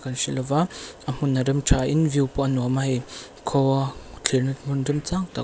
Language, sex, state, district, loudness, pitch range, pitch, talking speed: Mizo, female, Mizoram, Aizawl, -24 LUFS, 130-145 Hz, 135 Hz, 220 wpm